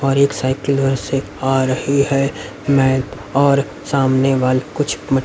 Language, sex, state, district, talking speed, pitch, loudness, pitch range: Hindi, male, Haryana, Rohtak, 150 wpm, 135 Hz, -17 LUFS, 130-140 Hz